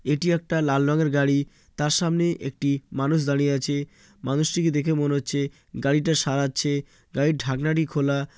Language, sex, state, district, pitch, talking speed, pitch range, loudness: Bengali, male, West Bengal, Jalpaiguri, 145 Hz, 145 wpm, 140-155 Hz, -24 LUFS